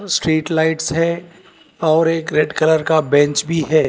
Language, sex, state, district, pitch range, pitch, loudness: Hindi, male, Telangana, Hyderabad, 155-165 Hz, 160 Hz, -16 LUFS